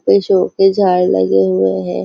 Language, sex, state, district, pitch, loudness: Hindi, female, Maharashtra, Nagpur, 95 Hz, -13 LUFS